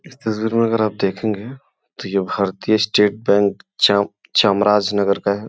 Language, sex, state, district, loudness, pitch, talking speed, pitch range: Hindi, male, Uttar Pradesh, Gorakhpur, -18 LUFS, 105 Hz, 175 wpm, 100-110 Hz